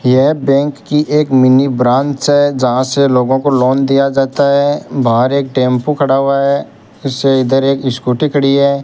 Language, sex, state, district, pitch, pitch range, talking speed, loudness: Hindi, male, Rajasthan, Bikaner, 135 Hz, 130-140 Hz, 185 wpm, -12 LUFS